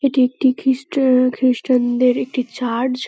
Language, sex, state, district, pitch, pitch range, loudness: Bengali, female, West Bengal, Kolkata, 255 Hz, 250-260 Hz, -17 LUFS